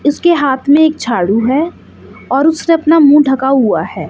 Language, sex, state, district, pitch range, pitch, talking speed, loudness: Hindi, female, Chandigarh, Chandigarh, 250-315 Hz, 285 Hz, 190 wpm, -11 LUFS